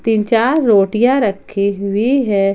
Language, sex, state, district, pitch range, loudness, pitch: Hindi, female, Jharkhand, Palamu, 200-240 Hz, -14 LUFS, 215 Hz